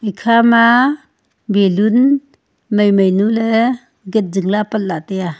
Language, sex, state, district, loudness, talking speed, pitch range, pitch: Wancho, female, Arunachal Pradesh, Longding, -14 LUFS, 145 wpm, 195-235 Hz, 215 Hz